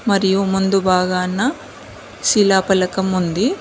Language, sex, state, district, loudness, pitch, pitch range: Telugu, female, Telangana, Mahabubabad, -17 LUFS, 190 Hz, 185-200 Hz